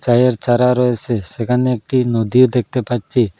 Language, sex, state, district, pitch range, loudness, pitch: Bengali, male, Assam, Hailakandi, 115-125 Hz, -16 LUFS, 120 Hz